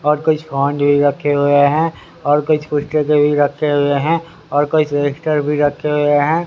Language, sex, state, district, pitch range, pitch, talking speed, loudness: Hindi, male, Haryana, Rohtak, 145-155 Hz, 145 Hz, 185 wpm, -16 LUFS